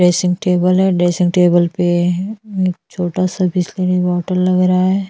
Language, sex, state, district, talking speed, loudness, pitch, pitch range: Hindi, female, Chhattisgarh, Sukma, 165 wpm, -15 LUFS, 180 Hz, 180-185 Hz